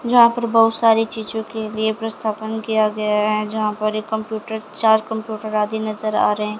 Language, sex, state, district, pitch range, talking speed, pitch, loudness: Hindi, female, Haryana, Jhajjar, 215-220 Hz, 190 wpm, 220 Hz, -20 LUFS